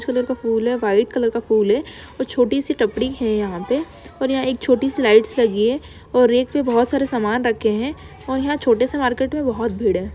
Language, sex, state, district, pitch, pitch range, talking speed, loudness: Hindi, female, Bihar, Madhepura, 245 Hz, 225-265 Hz, 230 wpm, -19 LUFS